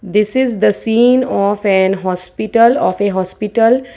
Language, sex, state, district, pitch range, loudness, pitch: English, female, Gujarat, Valsad, 195-235 Hz, -14 LUFS, 215 Hz